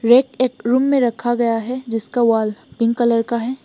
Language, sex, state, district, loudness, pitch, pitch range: Hindi, female, Assam, Hailakandi, -18 LUFS, 240 Hz, 230-250 Hz